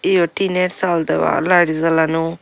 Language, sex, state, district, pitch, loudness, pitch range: Bengali, female, Tripura, Unakoti, 170 Hz, -17 LUFS, 165-180 Hz